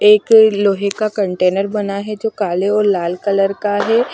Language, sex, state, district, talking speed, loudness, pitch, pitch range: Hindi, female, Punjab, Fazilka, 190 wpm, -15 LUFS, 205 Hz, 195-210 Hz